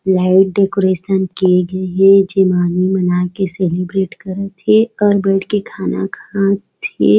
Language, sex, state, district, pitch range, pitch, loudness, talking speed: Chhattisgarhi, female, Chhattisgarh, Raigarh, 180-195 Hz, 190 Hz, -15 LUFS, 140 wpm